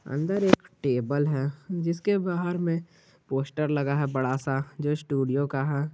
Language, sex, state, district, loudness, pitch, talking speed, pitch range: Hindi, male, Jharkhand, Garhwa, -27 LUFS, 145 Hz, 160 wpm, 140-170 Hz